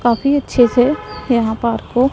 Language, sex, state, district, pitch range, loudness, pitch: Hindi, male, Punjab, Pathankot, 235-265 Hz, -16 LUFS, 245 Hz